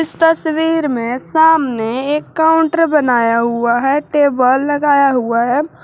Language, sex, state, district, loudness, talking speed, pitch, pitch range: Hindi, female, Jharkhand, Garhwa, -14 LUFS, 125 wpm, 290 Hz, 245-320 Hz